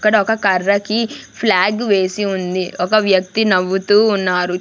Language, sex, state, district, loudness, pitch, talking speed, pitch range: Telugu, female, Andhra Pradesh, Sri Satya Sai, -16 LUFS, 200 Hz, 130 wpm, 185-215 Hz